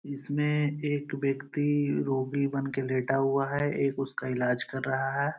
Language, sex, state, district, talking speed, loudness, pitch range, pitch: Hindi, male, Uttar Pradesh, Hamirpur, 180 wpm, -29 LUFS, 135-145 Hz, 140 Hz